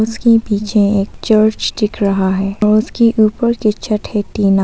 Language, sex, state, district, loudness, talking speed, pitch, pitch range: Hindi, female, Arunachal Pradesh, Papum Pare, -14 LUFS, 170 wpm, 215 Hz, 205-225 Hz